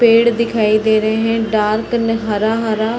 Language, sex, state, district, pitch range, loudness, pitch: Hindi, female, Bihar, Sitamarhi, 215-230 Hz, -15 LUFS, 220 Hz